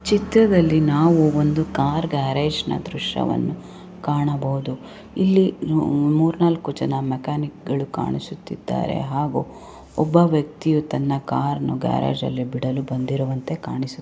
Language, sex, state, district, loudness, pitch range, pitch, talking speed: Kannada, female, Karnataka, Raichur, -21 LUFS, 130-160 Hz, 145 Hz, 110 wpm